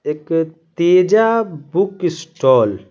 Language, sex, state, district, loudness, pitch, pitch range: Hindi, male, Bihar, Patna, -16 LUFS, 165 Hz, 155-185 Hz